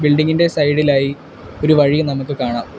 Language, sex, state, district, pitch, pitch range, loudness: Malayalam, male, Kerala, Kollam, 145 Hz, 140-150 Hz, -16 LUFS